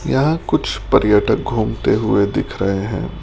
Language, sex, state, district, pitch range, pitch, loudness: Hindi, male, Rajasthan, Jaipur, 100-135 Hz, 105 Hz, -17 LUFS